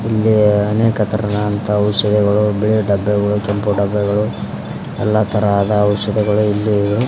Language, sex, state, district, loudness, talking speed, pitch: Kannada, male, Karnataka, Koppal, -16 LUFS, 120 wpm, 105 Hz